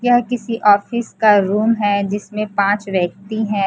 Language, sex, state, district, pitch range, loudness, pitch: Hindi, female, Chhattisgarh, Raipur, 200-225 Hz, -17 LUFS, 210 Hz